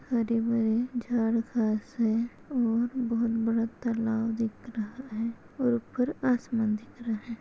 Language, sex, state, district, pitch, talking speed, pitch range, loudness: Hindi, female, Maharashtra, Sindhudurg, 230 Hz, 145 wpm, 225-240 Hz, -29 LUFS